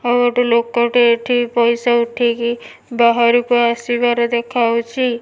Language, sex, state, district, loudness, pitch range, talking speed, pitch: Odia, female, Odisha, Nuapada, -15 LUFS, 235-245 Hz, 105 wpm, 235 Hz